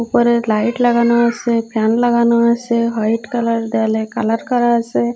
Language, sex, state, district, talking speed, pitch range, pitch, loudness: Bengali, female, Odisha, Malkangiri, 150 wpm, 225-235 Hz, 235 Hz, -16 LUFS